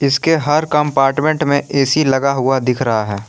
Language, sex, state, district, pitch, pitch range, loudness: Hindi, male, Jharkhand, Palamu, 140 Hz, 135-150 Hz, -15 LUFS